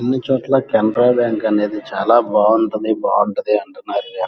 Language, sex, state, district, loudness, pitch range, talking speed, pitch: Telugu, male, Andhra Pradesh, Krishna, -17 LUFS, 105-125 Hz, 100 wpm, 110 Hz